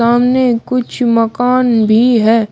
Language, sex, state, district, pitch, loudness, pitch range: Hindi, male, Uttar Pradesh, Shamli, 235 Hz, -12 LUFS, 230-250 Hz